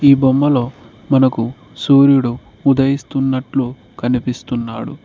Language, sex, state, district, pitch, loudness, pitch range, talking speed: Telugu, male, Telangana, Mahabubabad, 130 Hz, -16 LUFS, 120-135 Hz, 60 wpm